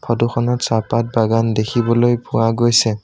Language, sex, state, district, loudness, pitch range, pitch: Assamese, male, Assam, Sonitpur, -17 LUFS, 115-120 Hz, 115 Hz